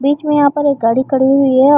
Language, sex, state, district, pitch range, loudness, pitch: Hindi, female, Chhattisgarh, Bilaspur, 265-290 Hz, -13 LUFS, 275 Hz